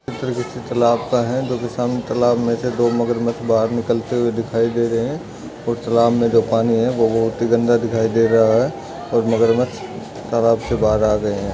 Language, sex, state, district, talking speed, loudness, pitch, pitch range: Hindi, male, Maharashtra, Solapur, 225 wpm, -18 LUFS, 115 Hz, 115-120 Hz